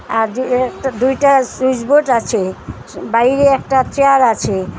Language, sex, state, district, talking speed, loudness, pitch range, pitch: Bengali, female, Assam, Hailakandi, 140 wpm, -14 LUFS, 235-270 Hz, 255 Hz